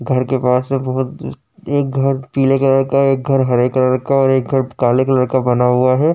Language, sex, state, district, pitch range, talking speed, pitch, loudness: Hindi, male, Uttar Pradesh, Jyotiba Phule Nagar, 130-135 Hz, 255 wpm, 130 Hz, -15 LUFS